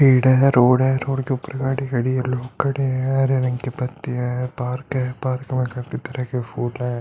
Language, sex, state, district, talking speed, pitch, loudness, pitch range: Hindi, male, Uttar Pradesh, Hamirpur, 220 wpm, 130 Hz, -21 LUFS, 125-135 Hz